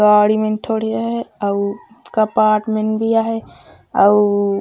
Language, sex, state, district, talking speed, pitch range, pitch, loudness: Chhattisgarhi, female, Chhattisgarh, Raigarh, 130 wpm, 205-220 Hz, 215 Hz, -17 LUFS